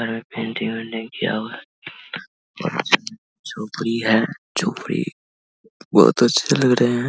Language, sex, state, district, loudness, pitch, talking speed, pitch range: Hindi, male, Bihar, Vaishali, -20 LUFS, 115 Hz, 145 wpm, 110-115 Hz